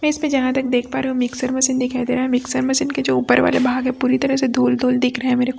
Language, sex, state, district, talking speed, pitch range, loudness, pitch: Hindi, female, Chhattisgarh, Raipur, 355 wpm, 250-265 Hz, -18 LUFS, 255 Hz